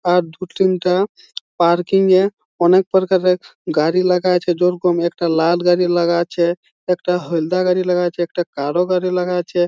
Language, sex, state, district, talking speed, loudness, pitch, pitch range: Bengali, male, West Bengal, Jalpaiguri, 135 wpm, -17 LUFS, 180 Hz, 175-185 Hz